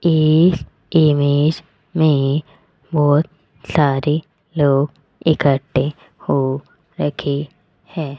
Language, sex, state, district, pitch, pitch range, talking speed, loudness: Hindi, female, Rajasthan, Jaipur, 150 Hz, 140-160 Hz, 75 wpm, -18 LUFS